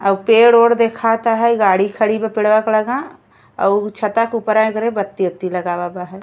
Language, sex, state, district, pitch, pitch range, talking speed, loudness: Bhojpuri, female, Uttar Pradesh, Gorakhpur, 215 Hz, 195-230 Hz, 200 wpm, -15 LUFS